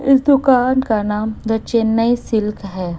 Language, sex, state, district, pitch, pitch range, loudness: Hindi, female, Chhattisgarh, Raipur, 225 Hz, 210-255 Hz, -16 LUFS